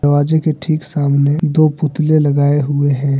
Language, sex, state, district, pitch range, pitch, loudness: Hindi, male, Jharkhand, Deoghar, 140-155 Hz, 145 Hz, -14 LUFS